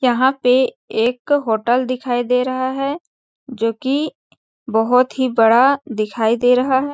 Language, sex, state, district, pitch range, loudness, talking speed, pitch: Hindi, female, Chhattisgarh, Balrampur, 235-265 Hz, -17 LUFS, 145 wpm, 250 Hz